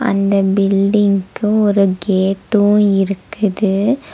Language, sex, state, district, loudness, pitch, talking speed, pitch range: Tamil, female, Tamil Nadu, Nilgiris, -15 LUFS, 200 Hz, 75 wpm, 195-210 Hz